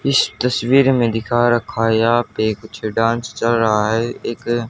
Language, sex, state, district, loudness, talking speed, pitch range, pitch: Hindi, male, Haryana, Charkhi Dadri, -17 LUFS, 180 wpm, 110-120 Hz, 115 Hz